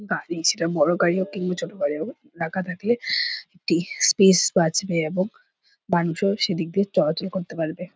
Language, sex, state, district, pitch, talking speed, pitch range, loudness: Bengali, female, West Bengal, Purulia, 180 Hz, 165 wpm, 170-200 Hz, -23 LUFS